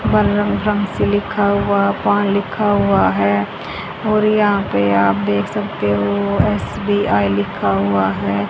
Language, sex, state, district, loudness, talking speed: Hindi, female, Haryana, Charkhi Dadri, -17 LUFS, 125 wpm